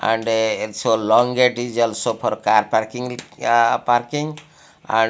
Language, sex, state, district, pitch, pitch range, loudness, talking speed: English, male, Odisha, Malkangiri, 115 Hz, 110-125 Hz, -19 LUFS, 95 wpm